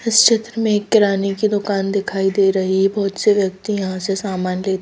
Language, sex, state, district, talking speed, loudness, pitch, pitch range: Hindi, female, Madhya Pradesh, Bhopal, 225 wpm, -17 LUFS, 200 Hz, 195-210 Hz